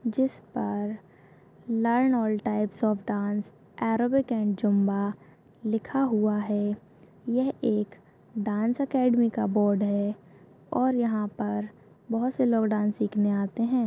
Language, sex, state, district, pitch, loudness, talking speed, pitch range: Hindi, female, Chhattisgarh, Bastar, 215 Hz, -27 LUFS, 130 wpm, 205-235 Hz